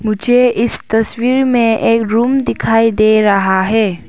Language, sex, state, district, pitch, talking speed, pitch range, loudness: Hindi, female, Arunachal Pradesh, Papum Pare, 225 Hz, 145 wpm, 215-240 Hz, -13 LUFS